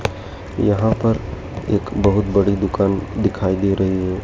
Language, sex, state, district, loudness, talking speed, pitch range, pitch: Hindi, male, Madhya Pradesh, Dhar, -19 LUFS, 140 wpm, 95-105 Hz, 100 Hz